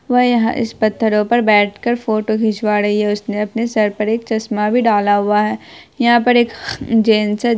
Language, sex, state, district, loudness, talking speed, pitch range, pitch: Hindi, female, Bihar, Araria, -15 LUFS, 205 wpm, 210-235 Hz, 220 Hz